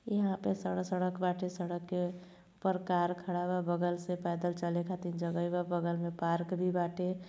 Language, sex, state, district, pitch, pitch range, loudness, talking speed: Bhojpuri, female, Uttar Pradesh, Gorakhpur, 175 Hz, 175-180 Hz, -35 LUFS, 175 wpm